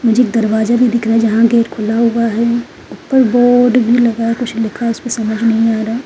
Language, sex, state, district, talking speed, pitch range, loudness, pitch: Hindi, female, Uttarakhand, Tehri Garhwal, 140 wpm, 225-245 Hz, -13 LUFS, 230 Hz